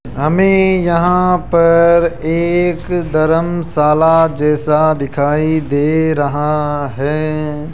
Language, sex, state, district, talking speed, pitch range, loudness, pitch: Hindi, male, Rajasthan, Jaipur, 80 wpm, 150-170 Hz, -14 LUFS, 155 Hz